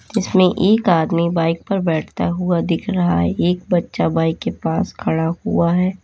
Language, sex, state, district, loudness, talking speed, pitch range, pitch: Hindi, female, Uttar Pradesh, Lalitpur, -18 LUFS, 180 wpm, 165-185 Hz, 175 Hz